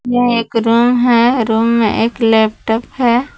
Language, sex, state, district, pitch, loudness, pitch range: Hindi, female, Jharkhand, Palamu, 235 Hz, -13 LUFS, 225-245 Hz